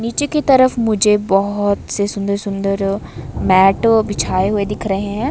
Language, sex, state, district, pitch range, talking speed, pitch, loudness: Hindi, female, Himachal Pradesh, Shimla, 195-225 Hz, 160 wpm, 205 Hz, -16 LUFS